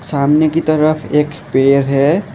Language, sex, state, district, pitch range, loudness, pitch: Hindi, male, Assam, Kamrup Metropolitan, 140-155 Hz, -13 LUFS, 150 Hz